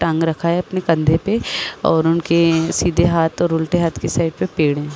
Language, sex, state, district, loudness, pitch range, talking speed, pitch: Hindi, female, Chhattisgarh, Rajnandgaon, -17 LUFS, 160-170 Hz, 215 wpm, 165 Hz